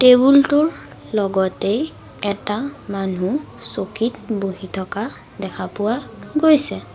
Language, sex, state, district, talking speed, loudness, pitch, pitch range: Assamese, female, Assam, Sonitpur, 95 wpm, -20 LUFS, 215 Hz, 195-280 Hz